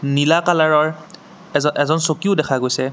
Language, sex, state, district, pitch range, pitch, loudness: Assamese, male, Assam, Sonitpur, 145-170 Hz, 155 Hz, -17 LUFS